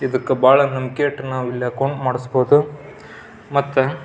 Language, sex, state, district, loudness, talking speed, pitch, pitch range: Kannada, male, Karnataka, Belgaum, -18 LUFS, 150 wpm, 130 Hz, 130-140 Hz